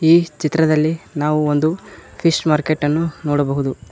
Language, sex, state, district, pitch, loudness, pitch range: Kannada, male, Karnataka, Koppal, 155 Hz, -18 LUFS, 150-165 Hz